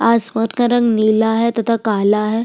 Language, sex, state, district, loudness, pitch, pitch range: Hindi, female, Chhattisgarh, Sukma, -16 LUFS, 225 Hz, 215-230 Hz